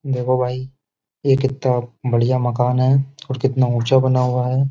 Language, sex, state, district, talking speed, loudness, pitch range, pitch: Hindi, male, Uttar Pradesh, Jyotiba Phule Nagar, 165 wpm, -19 LUFS, 125-135 Hz, 130 Hz